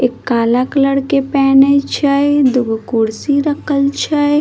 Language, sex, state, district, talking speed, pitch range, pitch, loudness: Maithili, female, Bihar, Madhepura, 150 wpm, 250-285 Hz, 275 Hz, -14 LUFS